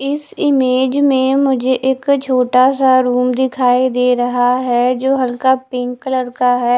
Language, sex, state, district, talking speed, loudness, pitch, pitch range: Hindi, female, Bihar, West Champaran, 160 wpm, -14 LUFS, 255 Hz, 250-265 Hz